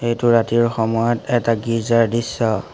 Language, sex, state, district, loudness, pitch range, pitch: Assamese, male, Assam, Hailakandi, -18 LUFS, 115-120 Hz, 115 Hz